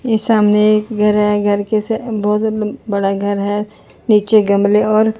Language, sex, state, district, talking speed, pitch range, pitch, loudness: Hindi, female, Chandigarh, Chandigarh, 160 wpm, 205-220 Hz, 210 Hz, -15 LUFS